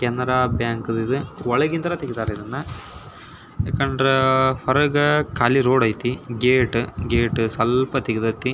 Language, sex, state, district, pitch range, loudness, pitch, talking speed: Kannada, male, Karnataka, Belgaum, 115-135 Hz, -21 LUFS, 125 Hz, 120 wpm